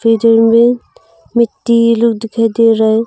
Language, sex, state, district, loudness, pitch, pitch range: Hindi, female, Arunachal Pradesh, Longding, -11 LUFS, 230 Hz, 225-235 Hz